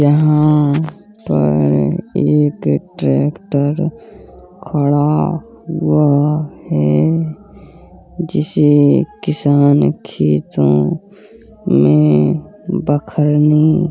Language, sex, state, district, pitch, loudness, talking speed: Hindi, female, Uttar Pradesh, Hamirpur, 150 Hz, -14 LUFS, 55 wpm